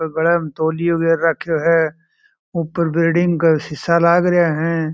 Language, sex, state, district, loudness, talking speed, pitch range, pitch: Marwari, male, Rajasthan, Churu, -17 LUFS, 160 wpm, 160-170 Hz, 165 Hz